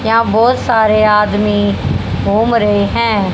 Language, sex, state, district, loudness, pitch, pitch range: Hindi, female, Haryana, Jhajjar, -12 LUFS, 215 Hz, 205-230 Hz